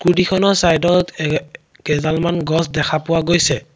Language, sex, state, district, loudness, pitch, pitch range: Assamese, male, Assam, Sonitpur, -16 LUFS, 165 Hz, 155-175 Hz